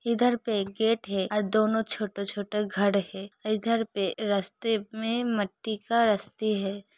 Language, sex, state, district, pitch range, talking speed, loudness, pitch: Hindi, female, Uttar Pradesh, Hamirpur, 200-225 Hz, 145 wpm, -28 LUFS, 210 Hz